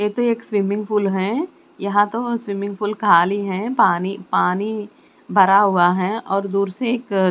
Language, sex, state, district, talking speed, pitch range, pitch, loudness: Hindi, female, Chandigarh, Chandigarh, 170 wpm, 195-225 Hz, 205 Hz, -19 LUFS